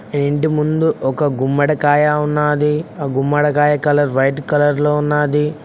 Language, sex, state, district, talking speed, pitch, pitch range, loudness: Telugu, male, Telangana, Mahabubabad, 140 wpm, 150 Hz, 145-150 Hz, -16 LUFS